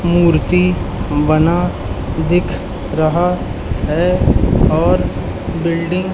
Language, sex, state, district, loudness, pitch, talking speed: Hindi, male, Madhya Pradesh, Katni, -16 LUFS, 155 Hz, 80 wpm